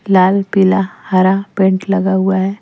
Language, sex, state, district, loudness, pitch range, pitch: Hindi, female, Madhya Pradesh, Umaria, -14 LUFS, 190-195 Hz, 190 Hz